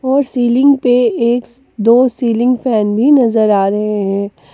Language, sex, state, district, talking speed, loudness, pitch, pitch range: Hindi, female, Jharkhand, Palamu, 160 wpm, -13 LUFS, 240 Hz, 210-250 Hz